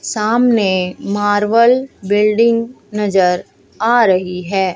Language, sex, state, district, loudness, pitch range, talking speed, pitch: Hindi, female, Haryana, Jhajjar, -15 LUFS, 190-230 Hz, 90 wpm, 210 Hz